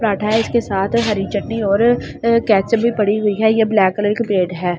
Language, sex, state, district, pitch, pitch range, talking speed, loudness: Hindi, male, Delhi, New Delhi, 210 Hz, 200-230 Hz, 225 wpm, -16 LUFS